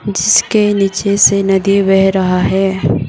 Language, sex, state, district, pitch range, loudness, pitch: Hindi, female, Sikkim, Gangtok, 190-200 Hz, -12 LUFS, 195 Hz